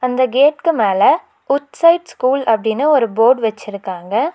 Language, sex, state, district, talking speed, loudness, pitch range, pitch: Tamil, female, Tamil Nadu, Nilgiris, 125 wpm, -15 LUFS, 220-295 Hz, 255 Hz